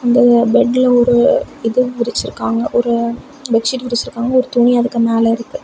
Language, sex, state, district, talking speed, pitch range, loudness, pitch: Tamil, female, Tamil Nadu, Kanyakumari, 140 wpm, 230-250 Hz, -14 LUFS, 240 Hz